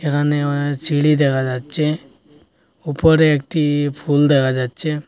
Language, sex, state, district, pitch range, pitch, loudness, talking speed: Bengali, male, Assam, Hailakandi, 140-150 Hz, 145 Hz, -17 LUFS, 120 wpm